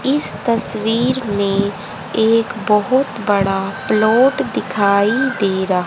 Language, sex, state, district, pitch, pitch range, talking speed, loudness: Hindi, female, Haryana, Charkhi Dadri, 215 Hz, 200-240 Hz, 100 wpm, -16 LUFS